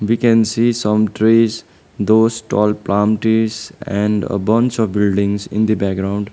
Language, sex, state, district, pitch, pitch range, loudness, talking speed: English, male, Sikkim, Gangtok, 110 Hz, 100-110 Hz, -16 LUFS, 160 wpm